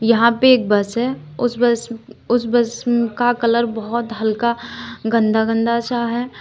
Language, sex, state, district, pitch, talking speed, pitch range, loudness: Hindi, female, Uttar Pradesh, Lalitpur, 235 Hz, 160 wpm, 225-240 Hz, -18 LUFS